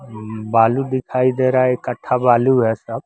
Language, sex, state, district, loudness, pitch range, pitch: Hindi, male, Bihar, West Champaran, -17 LUFS, 115-130 Hz, 125 Hz